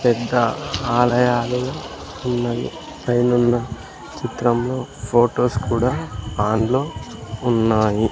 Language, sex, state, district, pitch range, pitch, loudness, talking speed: Telugu, male, Andhra Pradesh, Sri Satya Sai, 115-125 Hz, 120 Hz, -20 LUFS, 75 wpm